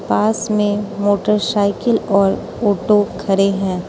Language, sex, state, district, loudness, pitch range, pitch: Hindi, female, Mizoram, Aizawl, -17 LUFS, 195-210 Hz, 205 Hz